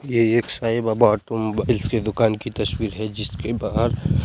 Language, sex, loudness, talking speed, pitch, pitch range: Hindi, male, -21 LUFS, 195 wpm, 115 Hz, 110-115 Hz